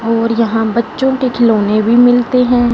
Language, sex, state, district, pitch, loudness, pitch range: Hindi, female, Punjab, Fazilka, 235 Hz, -12 LUFS, 225-245 Hz